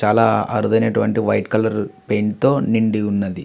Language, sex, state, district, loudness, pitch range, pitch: Telugu, male, Andhra Pradesh, Visakhapatnam, -18 LUFS, 105-110 Hz, 105 Hz